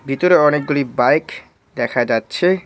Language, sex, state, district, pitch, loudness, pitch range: Bengali, male, West Bengal, Cooch Behar, 145 Hz, -16 LUFS, 125-180 Hz